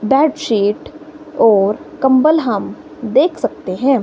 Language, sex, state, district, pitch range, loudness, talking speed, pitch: Hindi, female, Himachal Pradesh, Shimla, 225-310 Hz, -15 LUFS, 105 wpm, 270 Hz